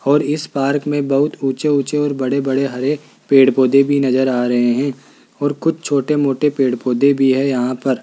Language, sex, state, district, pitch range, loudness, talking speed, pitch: Hindi, male, Rajasthan, Jaipur, 130-145 Hz, -16 LUFS, 180 wpm, 140 Hz